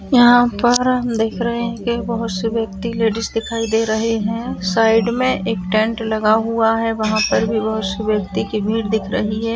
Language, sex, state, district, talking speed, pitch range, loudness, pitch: Hindi, female, Chhattisgarh, Sukma, 215 wpm, 215-230 Hz, -18 LUFS, 225 Hz